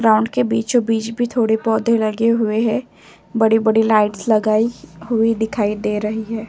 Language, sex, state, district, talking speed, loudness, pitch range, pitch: Hindi, female, Uttar Pradesh, Jyotiba Phule Nagar, 155 wpm, -18 LUFS, 215-230 Hz, 225 Hz